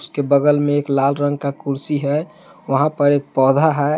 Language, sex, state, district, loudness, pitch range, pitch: Hindi, male, Jharkhand, Palamu, -18 LUFS, 140-150 Hz, 145 Hz